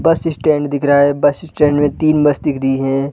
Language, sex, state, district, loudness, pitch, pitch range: Hindi, male, Chhattisgarh, Balrampur, -14 LUFS, 145 Hz, 140-155 Hz